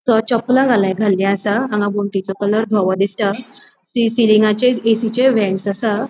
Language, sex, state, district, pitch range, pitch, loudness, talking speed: Konkani, female, Goa, North and South Goa, 200-235 Hz, 215 Hz, -16 LUFS, 145 wpm